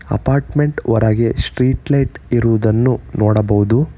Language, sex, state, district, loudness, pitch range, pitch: Kannada, male, Karnataka, Bangalore, -16 LUFS, 110-135 Hz, 115 Hz